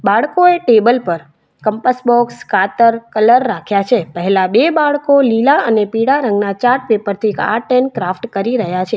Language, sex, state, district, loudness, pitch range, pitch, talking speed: Gujarati, female, Gujarat, Valsad, -13 LUFS, 200-250 Hz, 230 Hz, 165 wpm